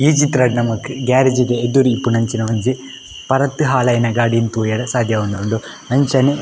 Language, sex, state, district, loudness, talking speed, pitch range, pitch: Tulu, male, Karnataka, Dakshina Kannada, -16 LUFS, 140 wpm, 115-130 Hz, 125 Hz